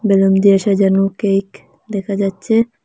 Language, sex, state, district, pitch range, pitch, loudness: Bengali, female, Assam, Hailakandi, 195-205 Hz, 200 Hz, -15 LUFS